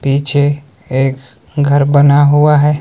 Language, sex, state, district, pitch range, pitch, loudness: Hindi, male, Himachal Pradesh, Shimla, 135-145 Hz, 145 Hz, -11 LUFS